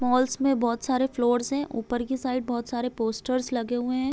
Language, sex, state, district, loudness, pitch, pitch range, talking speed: Hindi, female, Chhattisgarh, Bilaspur, -27 LUFS, 250 Hz, 240-260 Hz, 215 wpm